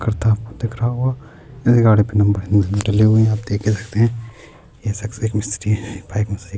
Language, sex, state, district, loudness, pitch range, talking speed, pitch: Urdu, male, Bihar, Saharsa, -18 LUFS, 105-115 Hz, 220 wpm, 110 Hz